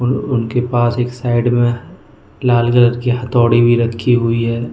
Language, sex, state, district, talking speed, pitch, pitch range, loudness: Hindi, male, Goa, North and South Goa, 165 wpm, 120 Hz, 120-125 Hz, -15 LUFS